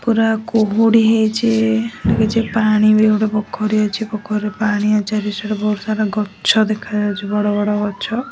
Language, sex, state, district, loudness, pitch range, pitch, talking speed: Odia, male, Odisha, Nuapada, -17 LUFS, 210-220 Hz, 215 Hz, 135 wpm